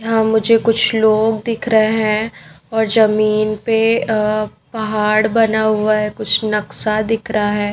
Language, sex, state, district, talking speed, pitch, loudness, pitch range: Hindi, female, Maharashtra, Mumbai Suburban, 155 wpm, 215 Hz, -16 LUFS, 215-225 Hz